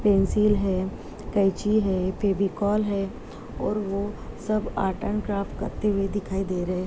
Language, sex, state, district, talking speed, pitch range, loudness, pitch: Hindi, female, Uttar Pradesh, Jyotiba Phule Nagar, 155 wpm, 195-210 Hz, -26 LUFS, 200 Hz